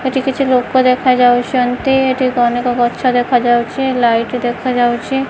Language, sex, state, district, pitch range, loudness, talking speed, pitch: Odia, female, Odisha, Khordha, 240-260 Hz, -14 LUFS, 125 wpm, 250 Hz